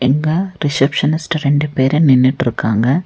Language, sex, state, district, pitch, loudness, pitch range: Tamil, female, Tamil Nadu, Nilgiris, 145 Hz, -15 LUFS, 130-155 Hz